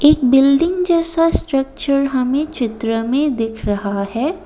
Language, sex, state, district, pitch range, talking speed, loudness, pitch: Hindi, female, Assam, Kamrup Metropolitan, 230-305 Hz, 135 wpm, -17 LUFS, 275 Hz